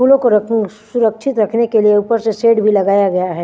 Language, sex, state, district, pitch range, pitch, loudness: Hindi, female, Chandigarh, Chandigarh, 205-230 Hz, 215 Hz, -14 LUFS